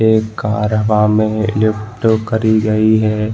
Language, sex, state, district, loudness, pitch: Hindi, male, Chhattisgarh, Balrampur, -14 LUFS, 110 Hz